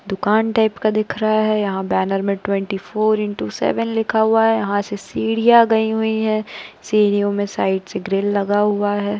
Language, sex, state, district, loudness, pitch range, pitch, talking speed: Hindi, female, Uttar Pradesh, Jalaun, -18 LUFS, 200-220 Hz, 210 Hz, 195 wpm